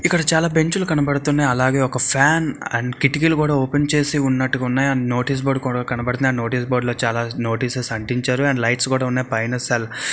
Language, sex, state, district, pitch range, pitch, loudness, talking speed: Telugu, male, Andhra Pradesh, Visakhapatnam, 125-145 Hz, 130 Hz, -19 LUFS, 190 wpm